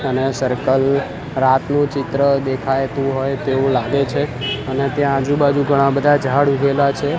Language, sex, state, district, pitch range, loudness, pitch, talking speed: Gujarati, male, Gujarat, Gandhinagar, 135-140 Hz, -17 LUFS, 140 Hz, 140 wpm